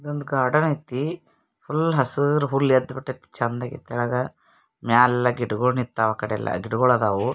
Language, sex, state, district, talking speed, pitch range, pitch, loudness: Kannada, male, Karnataka, Bijapur, 130 wpm, 120-145 Hz, 125 Hz, -22 LUFS